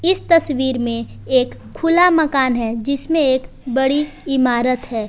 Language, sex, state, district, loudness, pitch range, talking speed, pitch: Hindi, female, Jharkhand, Palamu, -17 LUFS, 245-310 Hz, 140 wpm, 265 Hz